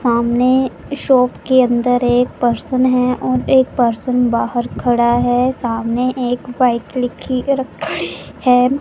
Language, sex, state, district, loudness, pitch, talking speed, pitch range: Hindi, female, Punjab, Pathankot, -16 LUFS, 250 Hz, 130 wpm, 240-255 Hz